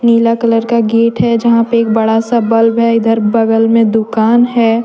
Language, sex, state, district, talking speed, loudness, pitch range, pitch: Hindi, female, Jharkhand, Deoghar, 220 wpm, -11 LUFS, 225-230 Hz, 230 Hz